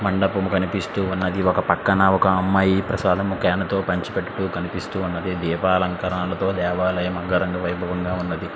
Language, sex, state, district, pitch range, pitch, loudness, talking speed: Telugu, male, Andhra Pradesh, Srikakulam, 90-95 Hz, 95 Hz, -22 LUFS, 140 wpm